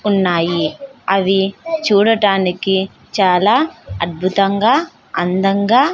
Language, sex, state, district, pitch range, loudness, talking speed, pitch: Telugu, female, Andhra Pradesh, Sri Satya Sai, 185-225 Hz, -16 LUFS, 70 wpm, 195 Hz